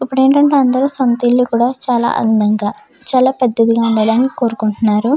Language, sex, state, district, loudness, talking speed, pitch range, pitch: Telugu, female, Andhra Pradesh, Chittoor, -14 LUFS, 115 wpm, 225-260 Hz, 245 Hz